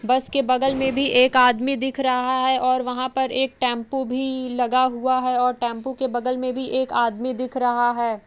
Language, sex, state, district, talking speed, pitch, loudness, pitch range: Hindi, female, Uttar Pradesh, Jalaun, 215 wpm, 255 Hz, -21 LUFS, 250-260 Hz